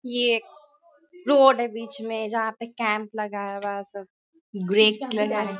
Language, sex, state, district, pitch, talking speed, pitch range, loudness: Hindi, female, Bihar, Sitamarhi, 225 Hz, 170 wpm, 210-250 Hz, -24 LUFS